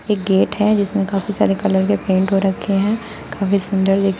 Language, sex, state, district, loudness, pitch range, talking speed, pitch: Hindi, female, Uttar Pradesh, Shamli, -17 LUFS, 195-205 Hz, 200 wpm, 195 Hz